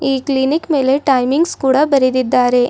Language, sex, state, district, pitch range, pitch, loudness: Kannada, female, Karnataka, Bidar, 255-280 Hz, 270 Hz, -14 LUFS